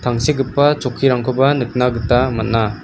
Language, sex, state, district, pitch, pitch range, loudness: Garo, female, Meghalaya, West Garo Hills, 125 Hz, 115-135 Hz, -16 LUFS